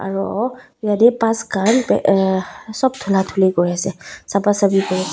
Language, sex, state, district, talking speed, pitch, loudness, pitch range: Nagamese, female, Nagaland, Dimapur, 165 wpm, 200 Hz, -17 LUFS, 190-225 Hz